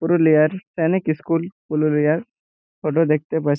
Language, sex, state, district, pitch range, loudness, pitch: Bengali, male, West Bengal, Purulia, 155-170 Hz, -20 LUFS, 160 Hz